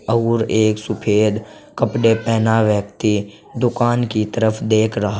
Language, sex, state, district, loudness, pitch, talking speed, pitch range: Hindi, male, Uttar Pradesh, Saharanpur, -18 LUFS, 110 Hz, 125 wpm, 105-115 Hz